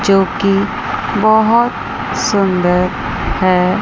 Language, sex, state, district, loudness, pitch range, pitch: Hindi, female, Chandigarh, Chandigarh, -14 LUFS, 185-215 Hz, 195 Hz